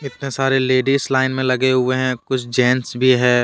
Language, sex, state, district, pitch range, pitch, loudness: Hindi, male, Jharkhand, Deoghar, 125-135 Hz, 130 Hz, -17 LUFS